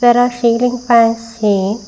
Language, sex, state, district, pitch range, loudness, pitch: English, female, Karnataka, Bangalore, 225-245 Hz, -14 LUFS, 235 Hz